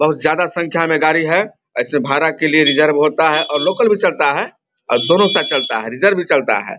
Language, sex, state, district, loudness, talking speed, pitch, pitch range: Hindi, male, Bihar, Vaishali, -15 LUFS, 240 wpm, 160 Hz, 155-180 Hz